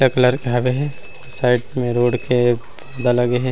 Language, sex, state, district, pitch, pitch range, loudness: Chhattisgarhi, male, Chhattisgarh, Rajnandgaon, 125 Hz, 120-130 Hz, -18 LUFS